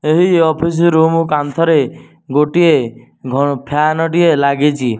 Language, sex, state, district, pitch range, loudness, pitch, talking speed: Odia, male, Odisha, Nuapada, 140-165 Hz, -13 LUFS, 150 Hz, 110 wpm